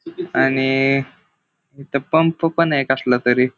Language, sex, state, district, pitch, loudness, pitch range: Marathi, male, Maharashtra, Pune, 135 Hz, -18 LUFS, 130-165 Hz